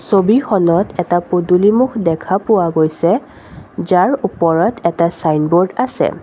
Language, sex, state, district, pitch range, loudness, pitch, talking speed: Assamese, female, Assam, Kamrup Metropolitan, 170-205 Hz, -14 LUFS, 180 Hz, 105 wpm